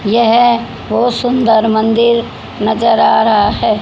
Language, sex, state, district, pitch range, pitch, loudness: Hindi, female, Haryana, Rohtak, 220-235 Hz, 230 Hz, -12 LUFS